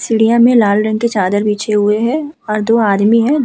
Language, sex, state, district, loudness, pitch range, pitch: Hindi, female, Uttar Pradesh, Hamirpur, -13 LUFS, 210-235 Hz, 220 Hz